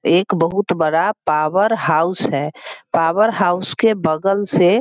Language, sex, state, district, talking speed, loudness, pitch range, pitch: Hindi, female, Bihar, Sitamarhi, 150 wpm, -17 LUFS, 165-205 Hz, 180 Hz